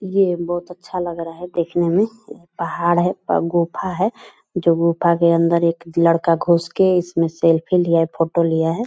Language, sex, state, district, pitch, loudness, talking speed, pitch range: Hindi, female, Bihar, Purnia, 170 Hz, -18 LUFS, 180 wpm, 165-180 Hz